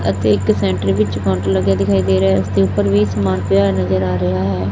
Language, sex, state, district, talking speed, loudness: Punjabi, female, Punjab, Fazilka, 240 wpm, -16 LUFS